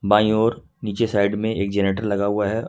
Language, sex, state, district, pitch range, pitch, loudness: Hindi, male, Jharkhand, Ranchi, 100-110 Hz, 105 Hz, -21 LUFS